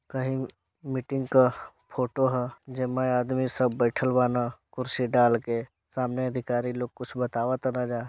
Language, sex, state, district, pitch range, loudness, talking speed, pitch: Bhojpuri, male, Bihar, Gopalganj, 125-130 Hz, -27 LUFS, 140 wpm, 125 Hz